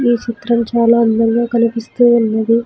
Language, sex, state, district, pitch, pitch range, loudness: Telugu, female, Andhra Pradesh, Sri Satya Sai, 235 Hz, 230-235 Hz, -14 LUFS